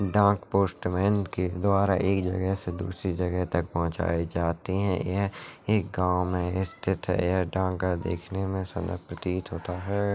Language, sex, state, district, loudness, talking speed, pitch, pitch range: Hindi, male, Chhattisgarh, Rajnandgaon, -28 LUFS, 160 wpm, 90 Hz, 90-95 Hz